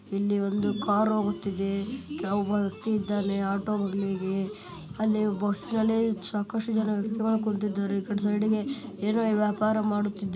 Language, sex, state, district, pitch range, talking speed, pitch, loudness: Kannada, male, Karnataka, Bellary, 200-215 Hz, 135 wpm, 205 Hz, -28 LUFS